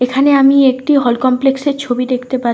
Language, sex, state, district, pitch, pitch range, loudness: Bengali, female, West Bengal, North 24 Parganas, 260 Hz, 250-275 Hz, -13 LUFS